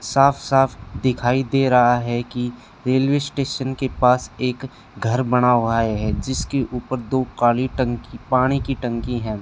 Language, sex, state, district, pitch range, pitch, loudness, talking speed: Hindi, male, Haryana, Charkhi Dadri, 120-130 Hz, 125 Hz, -20 LUFS, 160 wpm